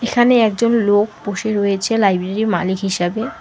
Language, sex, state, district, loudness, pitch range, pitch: Bengali, female, West Bengal, Alipurduar, -17 LUFS, 195-225 Hz, 210 Hz